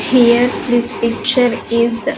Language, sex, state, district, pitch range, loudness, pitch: English, female, Andhra Pradesh, Sri Satya Sai, 235-245 Hz, -14 LUFS, 240 Hz